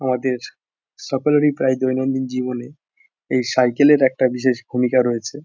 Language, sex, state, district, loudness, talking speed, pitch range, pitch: Bengali, male, West Bengal, Jhargram, -19 LUFS, 130 wpm, 125-140 Hz, 130 Hz